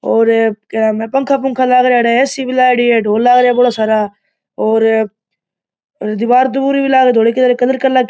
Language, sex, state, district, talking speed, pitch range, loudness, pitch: Marwari, male, Rajasthan, Churu, 195 wpm, 220-255 Hz, -12 LUFS, 240 Hz